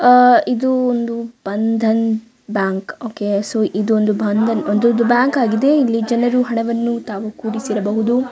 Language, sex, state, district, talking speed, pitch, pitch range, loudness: Kannada, female, Karnataka, Dakshina Kannada, 145 wpm, 230 Hz, 215-245 Hz, -17 LUFS